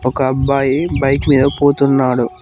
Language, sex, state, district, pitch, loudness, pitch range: Telugu, male, Telangana, Mahabubabad, 135 Hz, -14 LUFS, 130-140 Hz